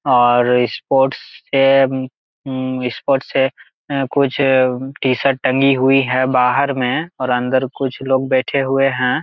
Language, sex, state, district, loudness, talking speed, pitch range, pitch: Hindi, male, Jharkhand, Jamtara, -16 LUFS, 135 wpm, 130-135 Hz, 130 Hz